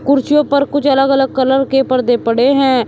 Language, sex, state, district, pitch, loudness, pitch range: Hindi, male, Uttar Pradesh, Shamli, 270 Hz, -13 LUFS, 260-280 Hz